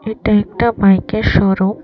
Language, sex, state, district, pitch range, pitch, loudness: Bengali, female, Tripura, West Tripura, 195-220 Hz, 200 Hz, -14 LUFS